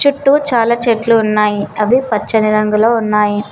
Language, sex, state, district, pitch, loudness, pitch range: Telugu, female, Telangana, Mahabubabad, 220 Hz, -13 LUFS, 210-235 Hz